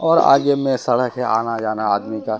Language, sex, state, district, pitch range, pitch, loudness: Hindi, male, Bihar, Katihar, 110-135 Hz, 125 Hz, -18 LUFS